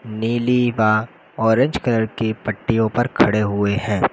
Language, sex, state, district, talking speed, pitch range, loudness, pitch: Hindi, male, Uttar Pradesh, Lucknow, 145 wpm, 105-120 Hz, -19 LUFS, 110 Hz